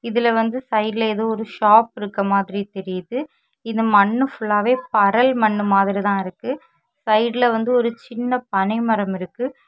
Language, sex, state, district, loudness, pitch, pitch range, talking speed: Tamil, female, Tamil Nadu, Kanyakumari, -19 LUFS, 220 Hz, 200-240 Hz, 140 wpm